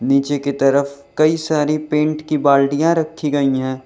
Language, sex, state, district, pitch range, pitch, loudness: Hindi, male, Uttar Pradesh, Lalitpur, 140-155 Hz, 145 Hz, -17 LUFS